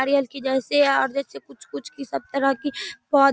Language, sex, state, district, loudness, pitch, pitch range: Hindi, female, Bihar, Darbhanga, -23 LUFS, 275 Hz, 250-280 Hz